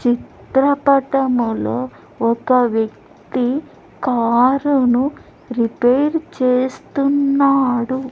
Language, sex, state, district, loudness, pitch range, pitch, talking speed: Telugu, female, Andhra Pradesh, Sri Satya Sai, -17 LUFS, 245-275 Hz, 255 Hz, 45 wpm